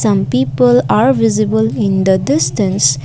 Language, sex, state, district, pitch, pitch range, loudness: English, female, Assam, Kamrup Metropolitan, 190 Hz, 135-210 Hz, -13 LUFS